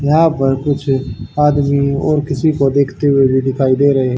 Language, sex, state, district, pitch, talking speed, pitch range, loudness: Hindi, male, Haryana, Charkhi Dadri, 140 Hz, 185 wpm, 135-145 Hz, -14 LUFS